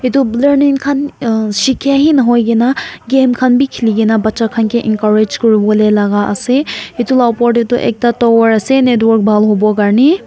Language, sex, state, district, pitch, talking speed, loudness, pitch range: Nagamese, female, Nagaland, Kohima, 235 Hz, 175 wpm, -11 LUFS, 220-265 Hz